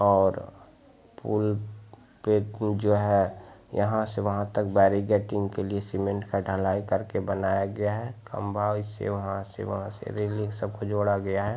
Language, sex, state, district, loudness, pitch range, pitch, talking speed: Hindi, male, Bihar, Muzaffarpur, -27 LUFS, 100-105 Hz, 100 Hz, 150 wpm